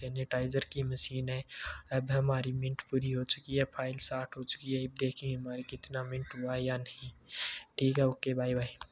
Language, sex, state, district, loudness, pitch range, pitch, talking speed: Hindi, male, Rajasthan, Churu, -35 LUFS, 130-135 Hz, 130 Hz, 215 wpm